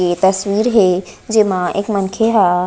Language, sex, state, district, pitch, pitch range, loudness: Chhattisgarhi, female, Chhattisgarh, Raigarh, 195 Hz, 180-215 Hz, -15 LUFS